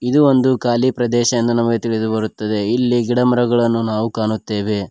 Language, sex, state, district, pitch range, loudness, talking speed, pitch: Kannada, male, Karnataka, Koppal, 110-125 Hz, -17 LUFS, 160 wpm, 115 Hz